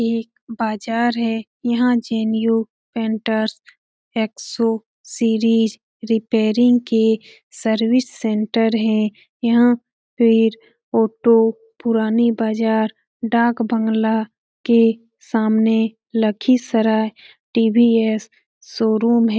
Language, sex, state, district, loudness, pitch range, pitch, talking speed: Hindi, female, Bihar, Lakhisarai, -18 LUFS, 220-235 Hz, 225 Hz, 90 wpm